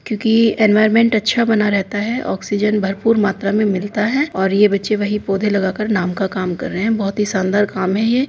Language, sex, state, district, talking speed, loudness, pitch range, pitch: Hindi, female, Uttar Pradesh, Hamirpur, 215 wpm, -17 LUFS, 195-220 Hz, 210 Hz